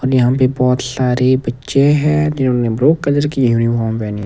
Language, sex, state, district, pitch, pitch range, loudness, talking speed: Hindi, male, Himachal Pradesh, Shimla, 130 Hz, 120-140 Hz, -15 LUFS, 195 wpm